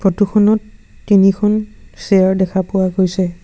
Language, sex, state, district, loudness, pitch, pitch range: Assamese, male, Assam, Sonitpur, -15 LUFS, 195 Hz, 190-210 Hz